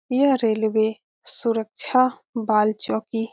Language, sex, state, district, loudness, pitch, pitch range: Hindi, female, Bihar, Saran, -22 LUFS, 225 Hz, 220-255 Hz